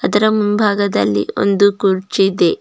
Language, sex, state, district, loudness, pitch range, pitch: Kannada, female, Karnataka, Bidar, -15 LUFS, 190-205 Hz, 200 Hz